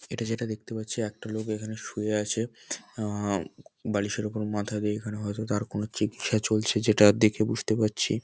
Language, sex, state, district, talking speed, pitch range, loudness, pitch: Bengali, male, West Bengal, North 24 Parganas, 175 wpm, 105-110 Hz, -28 LUFS, 110 Hz